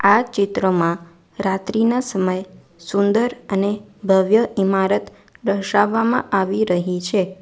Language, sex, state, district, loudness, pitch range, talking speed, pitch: Gujarati, female, Gujarat, Valsad, -19 LUFS, 185-215 Hz, 95 wpm, 195 Hz